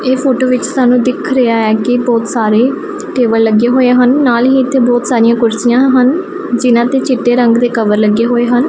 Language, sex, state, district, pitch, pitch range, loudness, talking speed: Punjabi, female, Punjab, Pathankot, 245 Hz, 235-260 Hz, -11 LUFS, 205 wpm